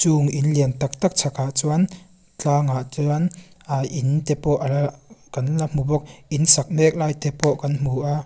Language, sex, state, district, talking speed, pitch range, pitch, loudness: Mizo, female, Mizoram, Aizawl, 190 wpm, 140-155 Hz, 145 Hz, -21 LUFS